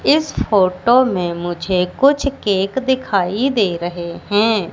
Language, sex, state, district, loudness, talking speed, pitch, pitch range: Hindi, female, Madhya Pradesh, Katni, -17 LUFS, 125 wpm, 200 Hz, 180-260 Hz